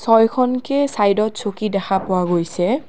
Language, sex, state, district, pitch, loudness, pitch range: Assamese, female, Assam, Kamrup Metropolitan, 215 Hz, -18 LUFS, 195-250 Hz